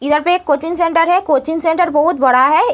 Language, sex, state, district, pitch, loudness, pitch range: Hindi, female, Uttar Pradesh, Muzaffarnagar, 325 Hz, -14 LUFS, 290-340 Hz